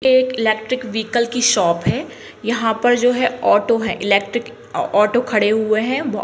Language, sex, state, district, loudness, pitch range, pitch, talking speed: Hindi, female, Bihar, Madhepura, -17 LUFS, 215-245 Hz, 230 Hz, 165 wpm